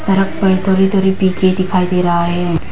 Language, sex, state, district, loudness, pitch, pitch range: Hindi, female, Arunachal Pradesh, Papum Pare, -14 LUFS, 185 Hz, 180-190 Hz